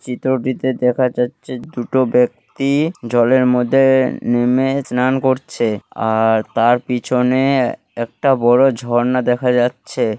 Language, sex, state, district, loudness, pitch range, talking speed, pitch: Bengali, male, West Bengal, Malda, -16 LUFS, 120-130 Hz, 110 wpm, 125 Hz